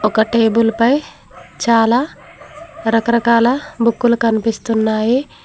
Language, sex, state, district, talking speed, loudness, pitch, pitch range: Telugu, female, Telangana, Mahabubabad, 75 wpm, -15 LUFS, 230 Hz, 225-245 Hz